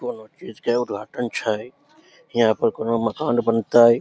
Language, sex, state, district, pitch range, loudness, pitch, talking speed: Maithili, male, Bihar, Samastipur, 110-120 Hz, -22 LUFS, 115 Hz, 165 wpm